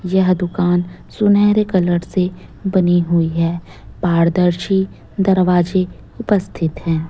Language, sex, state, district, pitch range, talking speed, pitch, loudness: Hindi, female, Chhattisgarh, Raipur, 170-190 Hz, 100 wpm, 180 Hz, -17 LUFS